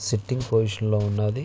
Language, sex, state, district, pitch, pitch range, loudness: Telugu, male, Andhra Pradesh, Visakhapatnam, 110 Hz, 105-115 Hz, -24 LUFS